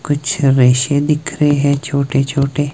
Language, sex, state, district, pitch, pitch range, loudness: Hindi, male, Himachal Pradesh, Shimla, 140 Hz, 140-145 Hz, -15 LUFS